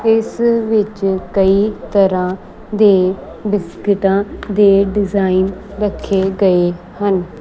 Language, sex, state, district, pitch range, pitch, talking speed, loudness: Punjabi, female, Punjab, Kapurthala, 190-210 Hz, 200 Hz, 90 wpm, -15 LUFS